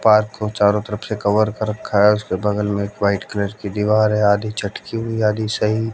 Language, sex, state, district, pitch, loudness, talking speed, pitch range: Hindi, male, Haryana, Jhajjar, 105 Hz, -19 LUFS, 230 wpm, 105-110 Hz